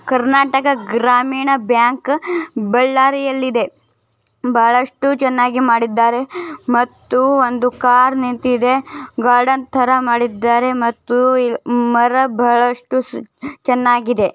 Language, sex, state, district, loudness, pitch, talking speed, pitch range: Kannada, female, Karnataka, Bellary, -15 LUFS, 250 Hz, 80 wpm, 240-265 Hz